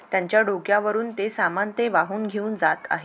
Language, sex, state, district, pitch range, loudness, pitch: Marathi, female, Maharashtra, Aurangabad, 200-215 Hz, -23 LUFS, 210 Hz